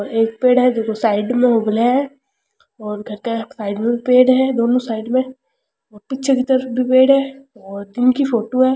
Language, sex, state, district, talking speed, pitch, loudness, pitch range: Rajasthani, female, Rajasthan, Churu, 225 wpm, 245 Hz, -16 LUFS, 225-260 Hz